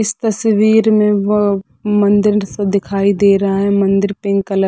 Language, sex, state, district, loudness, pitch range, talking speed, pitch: Hindi, female, Chhattisgarh, Sarguja, -14 LUFS, 200-210 Hz, 180 wpm, 200 Hz